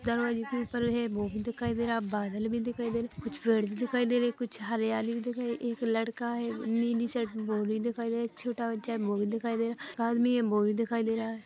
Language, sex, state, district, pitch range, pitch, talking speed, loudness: Hindi, female, Chhattisgarh, Bilaspur, 225-235 Hz, 230 Hz, 280 wpm, -31 LUFS